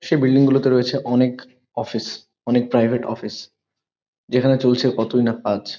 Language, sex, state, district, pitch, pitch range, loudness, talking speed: Bengali, male, West Bengal, Kolkata, 125 Hz, 120-130 Hz, -19 LUFS, 145 wpm